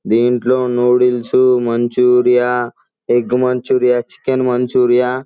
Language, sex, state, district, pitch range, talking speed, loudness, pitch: Telugu, male, Andhra Pradesh, Guntur, 120-125 Hz, 90 wpm, -14 LUFS, 125 Hz